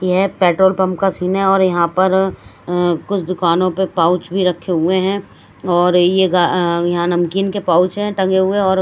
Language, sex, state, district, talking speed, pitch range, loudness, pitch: Hindi, female, Chandigarh, Chandigarh, 190 wpm, 175-190 Hz, -15 LUFS, 185 Hz